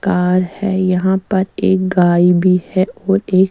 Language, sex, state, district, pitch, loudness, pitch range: Hindi, female, Chandigarh, Chandigarh, 185 Hz, -15 LUFS, 180-190 Hz